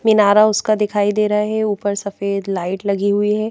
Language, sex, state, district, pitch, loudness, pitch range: Hindi, female, Madhya Pradesh, Bhopal, 205 Hz, -17 LUFS, 200-215 Hz